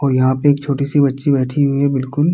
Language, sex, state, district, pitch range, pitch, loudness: Hindi, male, Bihar, Kishanganj, 135-145 Hz, 140 Hz, -16 LUFS